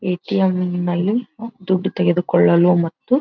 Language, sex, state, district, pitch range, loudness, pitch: Kannada, female, Karnataka, Belgaum, 175-195 Hz, -18 LUFS, 185 Hz